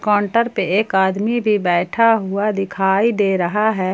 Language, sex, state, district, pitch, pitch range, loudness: Hindi, female, Jharkhand, Palamu, 205 Hz, 190-220 Hz, -17 LUFS